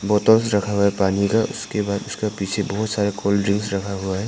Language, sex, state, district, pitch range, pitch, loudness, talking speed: Hindi, male, Arunachal Pradesh, Papum Pare, 100-105 Hz, 100 Hz, -21 LUFS, 240 wpm